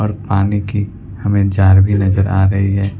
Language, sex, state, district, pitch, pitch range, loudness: Hindi, male, West Bengal, Alipurduar, 100 Hz, 95-100 Hz, -14 LUFS